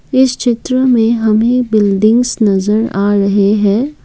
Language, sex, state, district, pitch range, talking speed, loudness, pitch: Hindi, female, Assam, Kamrup Metropolitan, 205-245 Hz, 135 wpm, -12 LUFS, 220 Hz